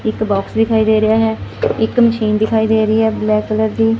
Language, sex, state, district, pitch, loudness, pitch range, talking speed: Punjabi, female, Punjab, Fazilka, 220 Hz, -15 LUFS, 215-225 Hz, 225 wpm